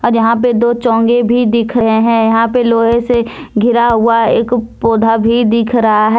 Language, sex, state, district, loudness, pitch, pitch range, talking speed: Hindi, female, Jharkhand, Deoghar, -12 LUFS, 230 Hz, 225-235 Hz, 205 wpm